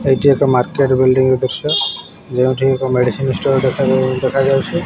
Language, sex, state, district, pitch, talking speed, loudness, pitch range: Odia, male, Odisha, Khordha, 130 Hz, 150 wpm, -15 LUFS, 130-135 Hz